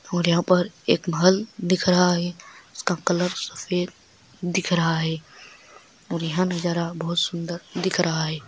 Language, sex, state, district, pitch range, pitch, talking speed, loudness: Hindi, male, Maharashtra, Solapur, 170-180 Hz, 175 Hz, 155 wpm, -23 LUFS